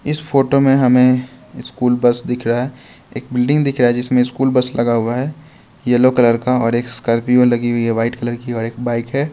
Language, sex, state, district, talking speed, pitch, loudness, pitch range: Hindi, male, Bihar, West Champaran, 220 wpm, 125 Hz, -16 LUFS, 120-130 Hz